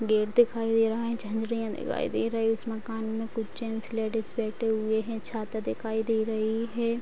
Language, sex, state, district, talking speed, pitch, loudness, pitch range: Hindi, female, Bihar, Sitamarhi, 205 wpm, 225 Hz, -29 LUFS, 220-230 Hz